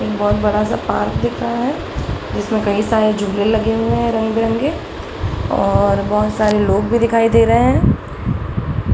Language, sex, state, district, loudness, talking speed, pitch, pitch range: Hindi, female, Bihar, Araria, -17 LUFS, 175 wpm, 215 Hz, 205-225 Hz